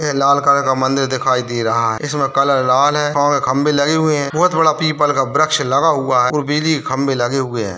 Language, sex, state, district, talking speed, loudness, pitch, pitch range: Hindi, male, Bihar, Jamui, 240 wpm, -15 LUFS, 140 Hz, 130-150 Hz